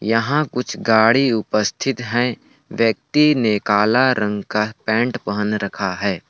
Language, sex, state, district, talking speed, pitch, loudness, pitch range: Hindi, male, Jharkhand, Palamu, 135 wpm, 115 Hz, -18 LUFS, 105-125 Hz